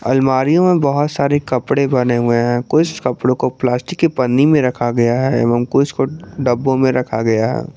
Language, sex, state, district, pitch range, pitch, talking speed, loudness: Hindi, male, Jharkhand, Garhwa, 120-145 Hz, 130 Hz, 200 wpm, -15 LUFS